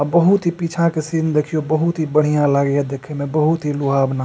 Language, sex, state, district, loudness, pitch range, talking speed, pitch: Maithili, male, Bihar, Supaul, -18 LUFS, 140-165 Hz, 210 wpm, 155 Hz